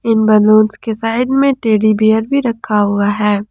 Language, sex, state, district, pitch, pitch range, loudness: Hindi, female, Jharkhand, Ranchi, 215 Hz, 210-230 Hz, -13 LUFS